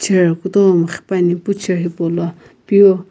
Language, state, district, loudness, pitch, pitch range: Sumi, Nagaland, Kohima, -15 LUFS, 180 Hz, 170-190 Hz